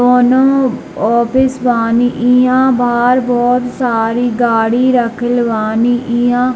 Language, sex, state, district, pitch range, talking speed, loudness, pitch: Hindi, male, Bihar, Darbhanga, 235-250 Hz, 110 wpm, -12 LUFS, 245 Hz